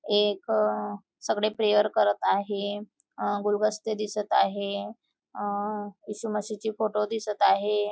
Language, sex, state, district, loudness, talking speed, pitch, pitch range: Marathi, female, Maharashtra, Nagpur, -27 LUFS, 120 wpm, 210 Hz, 205-215 Hz